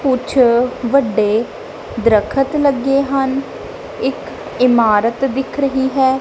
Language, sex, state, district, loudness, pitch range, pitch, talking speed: Punjabi, female, Punjab, Kapurthala, -15 LUFS, 245-275 Hz, 265 Hz, 95 wpm